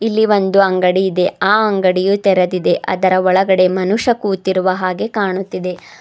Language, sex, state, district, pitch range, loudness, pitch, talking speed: Kannada, female, Karnataka, Bidar, 185-200 Hz, -15 LUFS, 190 Hz, 130 wpm